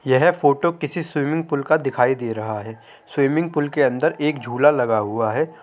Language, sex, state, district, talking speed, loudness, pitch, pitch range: Hindi, male, Uttar Pradesh, Hamirpur, 200 wpm, -20 LUFS, 140 Hz, 120-155 Hz